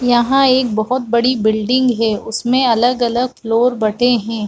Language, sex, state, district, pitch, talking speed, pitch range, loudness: Hindi, female, Chhattisgarh, Bastar, 240 Hz, 145 wpm, 225-250 Hz, -15 LUFS